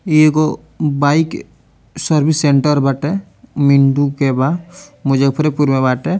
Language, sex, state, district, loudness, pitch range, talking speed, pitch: Bhojpuri, male, Bihar, Muzaffarpur, -15 LUFS, 140-155 Hz, 115 wpm, 145 Hz